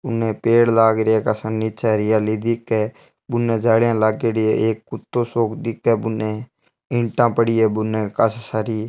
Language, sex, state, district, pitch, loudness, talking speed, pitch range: Marwari, male, Rajasthan, Churu, 110 Hz, -19 LUFS, 160 wpm, 110-115 Hz